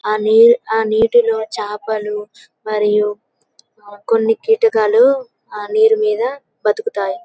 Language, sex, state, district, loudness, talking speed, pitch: Telugu, female, Telangana, Karimnagar, -15 LUFS, 85 wpm, 225 Hz